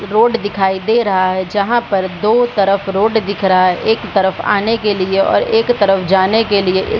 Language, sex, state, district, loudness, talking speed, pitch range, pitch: Hindi, female, Bihar, Supaul, -14 LUFS, 225 wpm, 190-220 Hz, 200 Hz